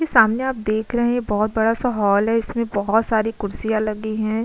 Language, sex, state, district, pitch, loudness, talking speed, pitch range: Hindi, female, Uttar Pradesh, Budaun, 220 Hz, -20 LUFS, 215 wpm, 215-230 Hz